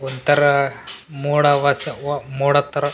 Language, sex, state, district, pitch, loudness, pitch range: Kannada, male, Karnataka, Raichur, 145 Hz, -18 LUFS, 140-145 Hz